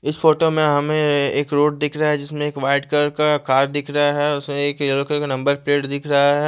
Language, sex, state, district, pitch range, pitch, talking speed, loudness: Hindi, male, Chandigarh, Chandigarh, 140-150 Hz, 145 Hz, 260 wpm, -18 LUFS